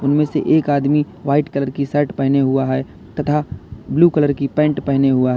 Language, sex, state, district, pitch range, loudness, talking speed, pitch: Hindi, male, Uttar Pradesh, Lalitpur, 135-150 Hz, -17 LUFS, 200 wpm, 140 Hz